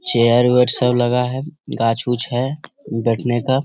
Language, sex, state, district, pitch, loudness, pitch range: Hindi, male, Bihar, Jamui, 125 Hz, -18 LUFS, 120-130 Hz